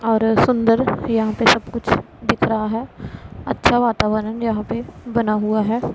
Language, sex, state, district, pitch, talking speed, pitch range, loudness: Hindi, female, Punjab, Pathankot, 225 Hz, 160 wpm, 215-235 Hz, -19 LUFS